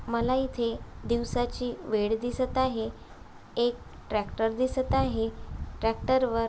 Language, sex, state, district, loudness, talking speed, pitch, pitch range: Marathi, female, Maharashtra, Aurangabad, -29 LUFS, 110 wpm, 235 Hz, 225-255 Hz